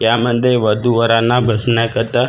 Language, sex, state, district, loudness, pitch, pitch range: Marathi, male, Maharashtra, Gondia, -14 LUFS, 120 Hz, 115-120 Hz